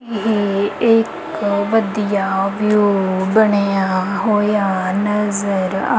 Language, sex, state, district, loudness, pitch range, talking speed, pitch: Punjabi, female, Punjab, Kapurthala, -17 LUFS, 195-215 Hz, 80 wpm, 205 Hz